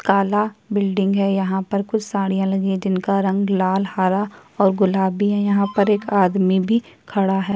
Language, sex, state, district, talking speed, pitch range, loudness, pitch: Hindi, female, Chhattisgarh, Kabirdham, 185 wpm, 190-205 Hz, -19 LUFS, 195 Hz